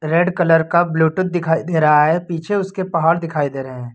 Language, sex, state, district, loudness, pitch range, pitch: Hindi, male, Uttar Pradesh, Lucknow, -17 LUFS, 155-175 Hz, 165 Hz